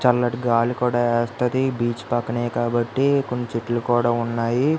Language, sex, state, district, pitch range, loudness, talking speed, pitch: Telugu, male, Andhra Pradesh, Visakhapatnam, 120-125 Hz, -22 LUFS, 150 wpm, 120 Hz